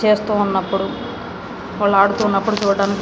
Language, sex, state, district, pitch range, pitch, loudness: Telugu, female, Andhra Pradesh, Srikakulam, 200-210 Hz, 200 Hz, -18 LUFS